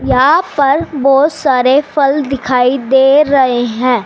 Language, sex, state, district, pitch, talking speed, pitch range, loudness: Hindi, female, Haryana, Charkhi Dadri, 270 Hz, 135 wpm, 255-285 Hz, -11 LUFS